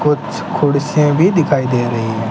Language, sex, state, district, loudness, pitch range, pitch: Hindi, male, Rajasthan, Bikaner, -15 LUFS, 120-150 Hz, 145 Hz